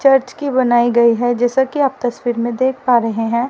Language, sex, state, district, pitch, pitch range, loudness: Hindi, female, Haryana, Rohtak, 245 Hz, 240-265 Hz, -16 LUFS